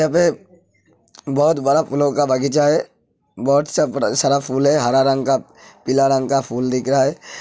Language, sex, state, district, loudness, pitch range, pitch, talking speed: Hindi, male, Uttar Pradesh, Hamirpur, -18 LUFS, 135-145 Hz, 140 Hz, 195 wpm